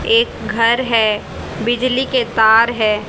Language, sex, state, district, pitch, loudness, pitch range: Hindi, female, Haryana, Rohtak, 230 Hz, -15 LUFS, 220-255 Hz